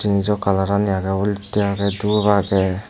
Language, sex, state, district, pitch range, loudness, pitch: Chakma, male, Tripura, Dhalai, 95-105 Hz, -19 LUFS, 100 Hz